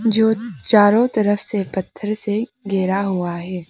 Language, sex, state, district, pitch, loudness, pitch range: Hindi, female, Arunachal Pradesh, Papum Pare, 205 Hz, -19 LUFS, 190-220 Hz